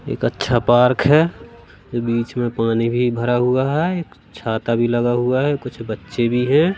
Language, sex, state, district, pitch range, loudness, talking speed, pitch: Hindi, male, Madhya Pradesh, Katni, 115-130 Hz, -18 LUFS, 185 wpm, 120 Hz